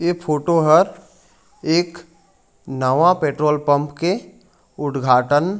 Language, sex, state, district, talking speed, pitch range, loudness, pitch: Chhattisgarhi, male, Chhattisgarh, Raigarh, 105 wpm, 145-175 Hz, -18 LUFS, 155 Hz